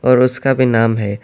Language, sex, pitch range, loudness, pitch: Urdu, male, 115-130 Hz, -14 LUFS, 125 Hz